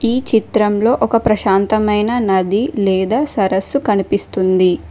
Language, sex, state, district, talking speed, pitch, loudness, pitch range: Telugu, female, Telangana, Mahabubabad, 100 wpm, 210 Hz, -15 LUFS, 195-230 Hz